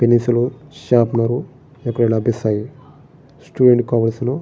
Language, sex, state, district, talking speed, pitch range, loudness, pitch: Telugu, male, Andhra Pradesh, Srikakulam, 95 wpm, 115-140 Hz, -17 LUFS, 120 Hz